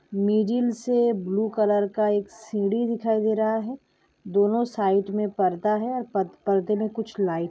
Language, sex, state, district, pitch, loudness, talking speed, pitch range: Hindi, female, Goa, North and South Goa, 210 Hz, -24 LUFS, 165 wpm, 200-225 Hz